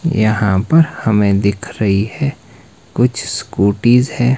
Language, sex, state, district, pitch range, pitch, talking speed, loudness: Hindi, male, Himachal Pradesh, Shimla, 100-125 Hz, 110 Hz, 125 wpm, -15 LUFS